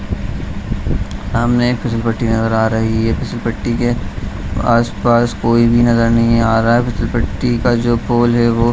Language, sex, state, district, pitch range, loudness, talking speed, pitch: Hindi, male, Bihar, Jamui, 110-120 Hz, -15 LUFS, 150 wpm, 115 Hz